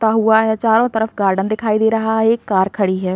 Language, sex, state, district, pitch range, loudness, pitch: Hindi, female, Uttar Pradesh, Varanasi, 195-220 Hz, -16 LUFS, 220 Hz